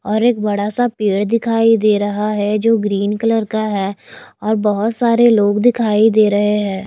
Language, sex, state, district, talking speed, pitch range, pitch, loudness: Hindi, female, Haryana, Jhajjar, 190 wpm, 205-225 Hz, 215 Hz, -15 LUFS